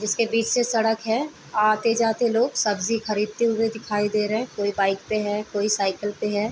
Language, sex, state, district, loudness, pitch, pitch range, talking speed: Hindi, female, Uttar Pradesh, Deoria, -23 LUFS, 215 Hz, 210-230 Hz, 205 wpm